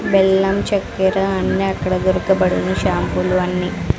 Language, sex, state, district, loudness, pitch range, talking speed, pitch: Telugu, female, Andhra Pradesh, Sri Satya Sai, -18 LUFS, 180-195 Hz, 105 wpm, 190 Hz